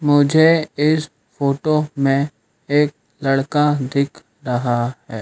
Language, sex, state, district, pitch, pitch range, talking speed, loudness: Hindi, male, Madhya Pradesh, Dhar, 140 Hz, 130-150 Hz, 105 wpm, -18 LUFS